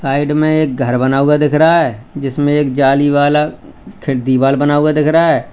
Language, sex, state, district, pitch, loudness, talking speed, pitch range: Hindi, male, Uttar Pradesh, Lalitpur, 145 Hz, -13 LUFS, 215 wpm, 135-150 Hz